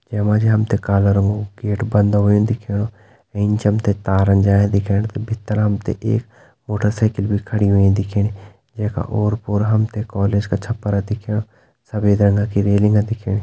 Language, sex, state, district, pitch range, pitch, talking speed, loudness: Hindi, male, Uttarakhand, Tehri Garhwal, 100-110 Hz, 105 Hz, 175 wpm, -18 LUFS